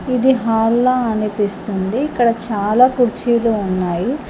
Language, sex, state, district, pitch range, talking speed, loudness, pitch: Telugu, female, Telangana, Hyderabad, 210-250 Hz, 100 wpm, -16 LUFS, 230 Hz